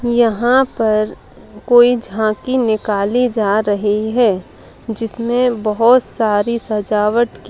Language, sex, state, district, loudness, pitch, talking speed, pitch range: Hindi, female, Bihar, Madhepura, -15 LUFS, 225 Hz, 110 wpm, 215-240 Hz